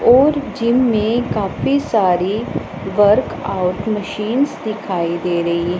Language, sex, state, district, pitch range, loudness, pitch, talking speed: Hindi, female, Punjab, Pathankot, 180-235 Hz, -17 LUFS, 210 Hz, 115 wpm